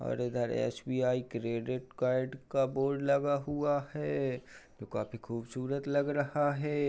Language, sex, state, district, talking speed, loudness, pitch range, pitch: Hindi, male, Uttar Pradesh, Jyotiba Phule Nagar, 140 wpm, -33 LUFS, 120-140 Hz, 130 Hz